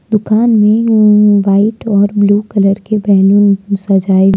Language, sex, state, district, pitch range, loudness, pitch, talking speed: Hindi, female, Jharkhand, Deoghar, 195-215 Hz, -10 LUFS, 205 Hz, 135 wpm